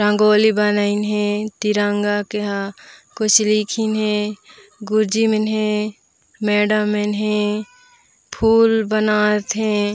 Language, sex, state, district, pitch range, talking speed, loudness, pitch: Chhattisgarhi, female, Chhattisgarh, Raigarh, 210-215 Hz, 115 wpm, -18 LUFS, 210 Hz